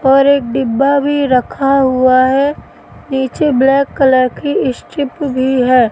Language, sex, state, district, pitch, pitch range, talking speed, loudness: Hindi, female, Madhya Pradesh, Katni, 270 Hz, 255-280 Hz, 140 wpm, -13 LUFS